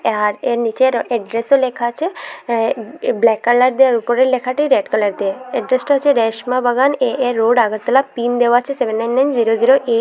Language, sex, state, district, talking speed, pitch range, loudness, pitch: Bengali, female, Tripura, West Tripura, 190 wpm, 230-265 Hz, -16 LUFS, 245 Hz